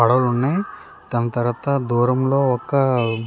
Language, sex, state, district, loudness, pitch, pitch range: Telugu, male, Andhra Pradesh, Srikakulam, -20 LUFS, 125 Hz, 120-135 Hz